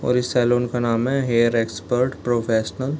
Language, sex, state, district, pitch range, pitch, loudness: Hindi, male, Bihar, Gopalganj, 115-125 Hz, 120 Hz, -21 LUFS